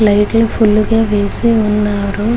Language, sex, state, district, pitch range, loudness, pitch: Telugu, female, Andhra Pradesh, Guntur, 205-225 Hz, -13 LUFS, 215 Hz